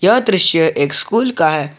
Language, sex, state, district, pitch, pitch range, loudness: Hindi, male, Jharkhand, Garhwa, 160 Hz, 155-210 Hz, -13 LUFS